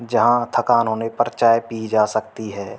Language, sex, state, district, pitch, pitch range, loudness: Hindi, male, Uttar Pradesh, Hamirpur, 115 Hz, 110-120 Hz, -19 LUFS